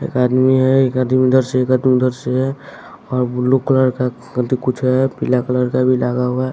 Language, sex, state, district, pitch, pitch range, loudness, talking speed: Hindi, male, Bihar, West Champaran, 130 Hz, 125-130 Hz, -16 LUFS, 230 wpm